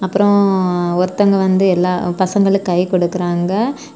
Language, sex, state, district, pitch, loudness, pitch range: Tamil, female, Tamil Nadu, Kanyakumari, 185 Hz, -15 LUFS, 180-200 Hz